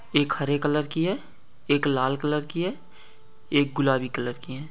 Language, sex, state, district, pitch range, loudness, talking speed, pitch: Hindi, male, Uttar Pradesh, Budaun, 135-150 Hz, -26 LUFS, 190 wpm, 145 Hz